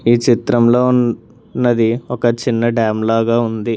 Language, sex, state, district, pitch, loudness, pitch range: Telugu, male, Telangana, Hyderabad, 120 Hz, -15 LUFS, 115-120 Hz